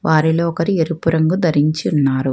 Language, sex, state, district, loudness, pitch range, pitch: Telugu, female, Telangana, Hyderabad, -17 LUFS, 150-165 Hz, 160 Hz